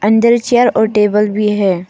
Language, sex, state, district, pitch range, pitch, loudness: Hindi, female, Arunachal Pradesh, Papum Pare, 210-225 Hz, 210 Hz, -12 LUFS